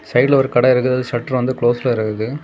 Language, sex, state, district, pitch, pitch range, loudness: Tamil, male, Tamil Nadu, Kanyakumari, 125 Hz, 120-130 Hz, -16 LUFS